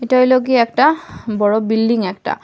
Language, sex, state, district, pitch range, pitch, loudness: Bengali, female, Assam, Hailakandi, 220-255 Hz, 235 Hz, -15 LUFS